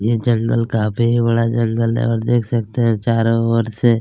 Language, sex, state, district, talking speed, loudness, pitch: Hindi, male, Chhattisgarh, Kabirdham, 210 wpm, -17 LUFS, 115 Hz